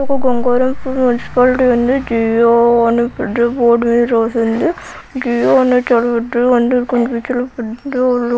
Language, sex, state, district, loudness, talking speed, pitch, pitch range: Telugu, female, Telangana, Nalgonda, -14 LUFS, 145 wpm, 240 Hz, 235-255 Hz